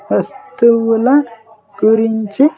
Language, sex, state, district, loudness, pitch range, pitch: Telugu, male, Andhra Pradesh, Sri Satya Sai, -13 LUFS, 220-245 Hz, 225 Hz